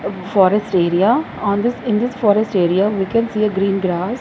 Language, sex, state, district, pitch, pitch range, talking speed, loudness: English, female, Punjab, Fazilka, 200 Hz, 190-215 Hz, 200 wpm, -17 LUFS